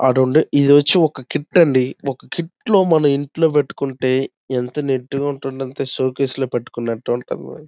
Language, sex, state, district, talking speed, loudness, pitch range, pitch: Telugu, male, Andhra Pradesh, Chittoor, 180 wpm, -18 LUFS, 130-150 Hz, 135 Hz